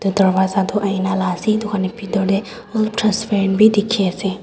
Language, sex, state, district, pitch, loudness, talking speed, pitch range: Nagamese, female, Nagaland, Dimapur, 200 Hz, -18 LUFS, 205 wpm, 195-215 Hz